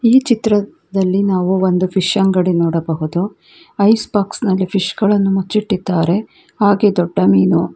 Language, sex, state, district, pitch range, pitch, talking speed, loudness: Kannada, female, Karnataka, Bangalore, 180-205 Hz, 195 Hz, 125 wpm, -15 LUFS